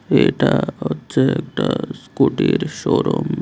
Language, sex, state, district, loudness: Bengali, male, Tripura, West Tripura, -19 LUFS